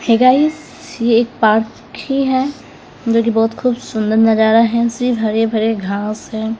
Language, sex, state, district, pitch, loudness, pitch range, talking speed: Hindi, female, Bihar, Katihar, 230 Hz, -15 LUFS, 220-245 Hz, 155 wpm